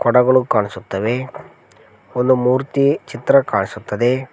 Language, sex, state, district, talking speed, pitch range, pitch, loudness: Kannada, male, Karnataka, Koppal, 85 wpm, 110-130 Hz, 125 Hz, -17 LUFS